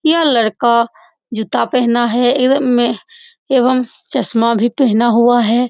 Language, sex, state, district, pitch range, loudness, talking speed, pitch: Hindi, female, Uttar Pradesh, Muzaffarnagar, 235-260 Hz, -14 LUFS, 135 wpm, 240 Hz